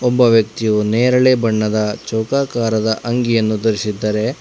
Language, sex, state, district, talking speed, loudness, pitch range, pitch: Kannada, male, Karnataka, Bangalore, 95 wpm, -16 LUFS, 110-120 Hz, 110 Hz